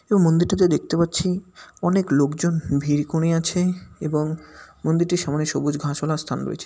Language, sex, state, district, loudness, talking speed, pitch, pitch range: Bengali, male, West Bengal, Malda, -22 LUFS, 145 wpm, 165 Hz, 150-175 Hz